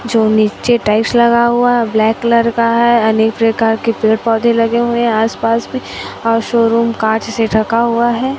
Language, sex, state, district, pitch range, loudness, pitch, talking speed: Hindi, female, Chhattisgarh, Raipur, 225-235 Hz, -13 LUFS, 230 Hz, 195 wpm